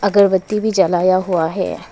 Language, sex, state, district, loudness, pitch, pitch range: Hindi, female, Arunachal Pradesh, Papum Pare, -16 LUFS, 190 Hz, 185-200 Hz